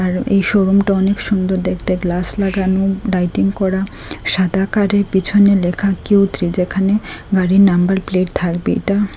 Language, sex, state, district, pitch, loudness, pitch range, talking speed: Bengali, female, Assam, Hailakandi, 195 Hz, -16 LUFS, 185-200 Hz, 145 wpm